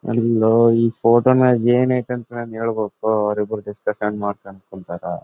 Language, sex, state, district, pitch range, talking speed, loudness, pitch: Kannada, male, Karnataka, Bellary, 105-120 Hz, 150 wpm, -18 LUFS, 115 Hz